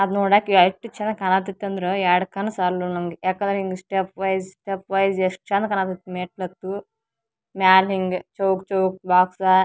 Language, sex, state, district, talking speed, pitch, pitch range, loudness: Kannada, female, Karnataka, Dharwad, 155 wpm, 190 Hz, 185-195 Hz, -22 LUFS